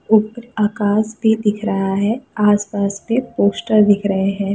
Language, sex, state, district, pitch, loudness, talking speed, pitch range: Hindi, female, Bihar, Sitamarhi, 210 Hz, -17 LUFS, 160 wpm, 200-220 Hz